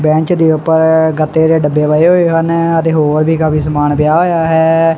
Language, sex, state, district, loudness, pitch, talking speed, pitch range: Punjabi, male, Punjab, Kapurthala, -11 LUFS, 160 Hz, 205 wpm, 155-165 Hz